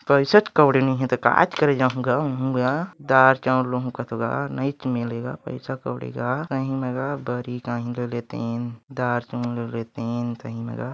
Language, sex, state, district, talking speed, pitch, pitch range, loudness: Chhattisgarhi, male, Chhattisgarh, Bilaspur, 185 wpm, 125 Hz, 120-135 Hz, -23 LUFS